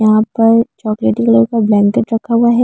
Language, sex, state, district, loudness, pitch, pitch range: Hindi, female, Delhi, New Delhi, -13 LUFS, 220 Hz, 210-230 Hz